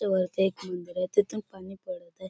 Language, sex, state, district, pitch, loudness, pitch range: Marathi, male, Maharashtra, Chandrapur, 190 Hz, -30 LUFS, 185-215 Hz